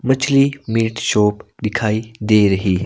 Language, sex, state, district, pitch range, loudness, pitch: Hindi, male, Himachal Pradesh, Shimla, 105-115 Hz, -17 LUFS, 110 Hz